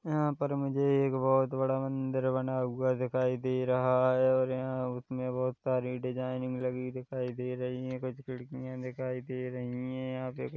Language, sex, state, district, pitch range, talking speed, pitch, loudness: Hindi, male, Chhattisgarh, Rajnandgaon, 125-130 Hz, 180 wpm, 130 Hz, -32 LUFS